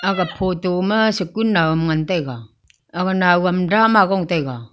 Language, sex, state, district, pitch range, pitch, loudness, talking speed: Wancho, female, Arunachal Pradesh, Longding, 160-195 Hz, 180 Hz, -18 LUFS, 150 wpm